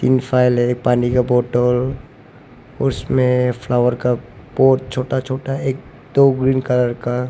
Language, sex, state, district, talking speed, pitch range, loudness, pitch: Hindi, male, Arunachal Pradesh, Papum Pare, 150 wpm, 125-130 Hz, -17 LUFS, 125 Hz